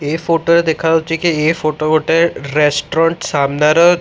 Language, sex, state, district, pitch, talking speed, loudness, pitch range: Odia, male, Odisha, Khordha, 160 Hz, 150 wpm, -14 LUFS, 150-165 Hz